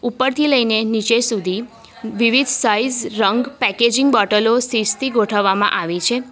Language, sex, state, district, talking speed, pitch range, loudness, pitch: Gujarati, female, Gujarat, Valsad, 125 wpm, 215-250 Hz, -16 LUFS, 230 Hz